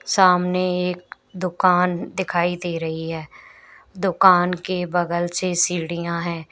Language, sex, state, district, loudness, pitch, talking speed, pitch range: Hindi, female, Uttar Pradesh, Shamli, -21 LUFS, 180 Hz, 120 wpm, 170-180 Hz